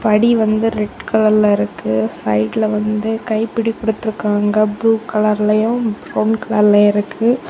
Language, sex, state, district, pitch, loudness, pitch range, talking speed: Tamil, female, Tamil Nadu, Kanyakumari, 215 Hz, -16 LUFS, 210-225 Hz, 110 wpm